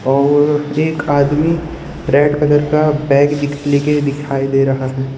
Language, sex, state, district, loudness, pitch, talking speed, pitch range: Hindi, male, Gujarat, Valsad, -14 LUFS, 145 Hz, 140 wpm, 140-150 Hz